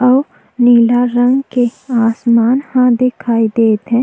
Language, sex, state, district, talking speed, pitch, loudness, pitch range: Chhattisgarhi, female, Chhattisgarh, Jashpur, 135 wpm, 245 Hz, -12 LUFS, 230-255 Hz